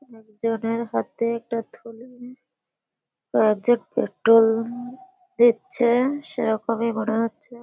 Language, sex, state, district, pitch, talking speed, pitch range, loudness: Bengali, female, West Bengal, Kolkata, 230 Hz, 95 wpm, 225-245 Hz, -22 LUFS